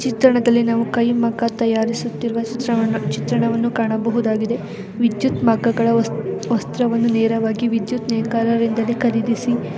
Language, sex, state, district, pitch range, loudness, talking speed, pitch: Kannada, female, Karnataka, Dakshina Kannada, 225-235 Hz, -19 LUFS, 110 wpm, 230 Hz